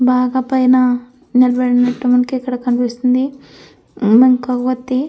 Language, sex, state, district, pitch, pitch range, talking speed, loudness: Telugu, female, Andhra Pradesh, Anantapur, 250 Hz, 245-255 Hz, 105 wpm, -15 LUFS